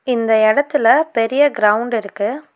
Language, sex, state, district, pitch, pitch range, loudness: Tamil, female, Tamil Nadu, Nilgiris, 230 Hz, 215-285 Hz, -15 LUFS